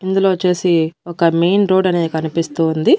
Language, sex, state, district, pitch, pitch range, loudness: Telugu, female, Andhra Pradesh, Annamaya, 170 Hz, 165-185 Hz, -16 LUFS